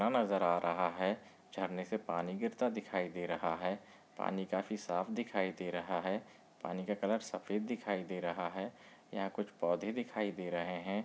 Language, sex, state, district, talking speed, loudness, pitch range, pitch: Hindi, male, Maharashtra, Chandrapur, 185 wpm, -38 LUFS, 90-105 Hz, 95 Hz